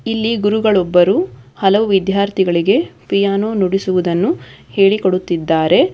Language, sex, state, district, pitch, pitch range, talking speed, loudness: Kannada, female, Karnataka, Bangalore, 195 Hz, 180-200 Hz, 80 wpm, -15 LUFS